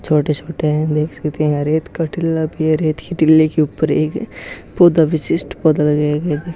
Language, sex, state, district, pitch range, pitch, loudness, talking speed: Hindi, male, Rajasthan, Bikaner, 150-160 Hz, 155 Hz, -16 LUFS, 200 wpm